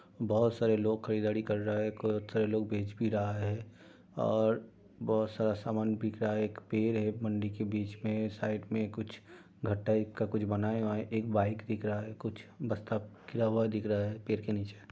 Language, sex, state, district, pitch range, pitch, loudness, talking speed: Hindi, male, Uttar Pradesh, Budaun, 105-110 Hz, 110 Hz, -34 LUFS, 200 wpm